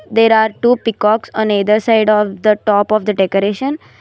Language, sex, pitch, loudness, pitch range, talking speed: English, female, 215 Hz, -14 LUFS, 210-225 Hz, 195 wpm